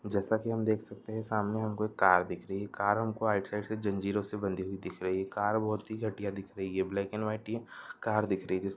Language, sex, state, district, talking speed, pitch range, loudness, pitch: Hindi, male, Andhra Pradesh, Anantapur, 280 wpm, 95-110 Hz, -33 LUFS, 105 Hz